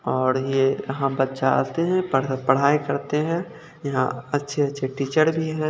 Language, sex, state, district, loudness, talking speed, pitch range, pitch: Hindi, male, Chandigarh, Chandigarh, -23 LUFS, 170 wpm, 135-155 Hz, 140 Hz